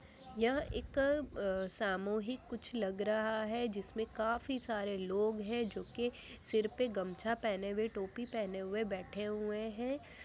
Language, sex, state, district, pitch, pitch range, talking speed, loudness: Hindi, female, Bihar, Jamui, 220 Hz, 200-235 Hz, 140 wpm, -38 LUFS